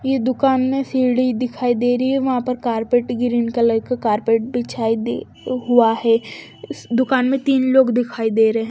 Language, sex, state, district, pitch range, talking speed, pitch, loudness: Hindi, female, Bihar, West Champaran, 230-255 Hz, 195 wpm, 245 Hz, -18 LUFS